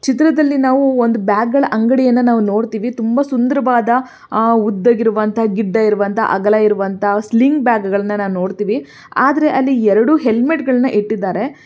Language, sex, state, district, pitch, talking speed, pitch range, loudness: Kannada, female, Karnataka, Belgaum, 230 Hz, 130 wpm, 215-260 Hz, -14 LUFS